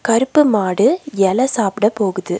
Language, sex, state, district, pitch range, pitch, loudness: Tamil, female, Tamil Nadu, Nilgiris, 195-255 Hz, 215 Hz, -16 LUFS